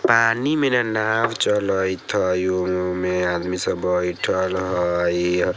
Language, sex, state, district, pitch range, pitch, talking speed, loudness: Bajjika, male, Bihar, Vaishali, 90-110 Hz, 90 Hz, 120 wpm, -21 LUFS